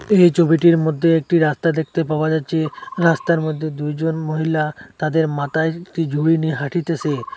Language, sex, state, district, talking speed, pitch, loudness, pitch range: Bengali, male, Assam, Hailakandi, 145 wpm, 160 Hz, -18 LUFS, 155-165 Hz